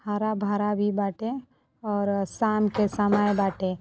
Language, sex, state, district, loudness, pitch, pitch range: Bhojpuri, female, Uttar Pradesh, Deoria, -26 LUFS, 205 Hz, 200-210 Hz